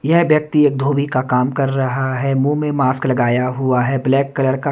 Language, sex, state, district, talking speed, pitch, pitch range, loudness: Hindi, male, Odisha, Nuapada, 230 wpm, 135 Hz, 130-140 Hz, -17 LUFS